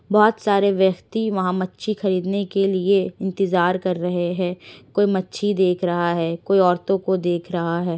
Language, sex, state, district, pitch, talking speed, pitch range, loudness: Hindi, female, Bihar, Kishanganj, 185 Hz, 175 wpm, 175-195 Hz, -21 LUFS